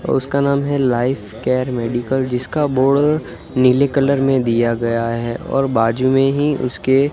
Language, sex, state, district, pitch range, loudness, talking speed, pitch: Hindi, male, Gujarat, Gandhinagar, 120-140 Hz, -17 LUFS, 170 wpm, 130 Hz